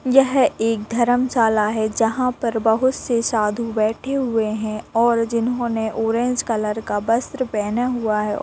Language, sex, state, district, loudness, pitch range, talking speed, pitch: Hindi, female, Bihar, Saran, -20 LUFS, 220-245 Hz, 150 wpm, 230 Hz